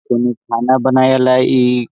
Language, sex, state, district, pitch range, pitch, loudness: Bhojpuri, male, Bihar, Saran, 120-130 Hz, 130 Hz, -13 LUFS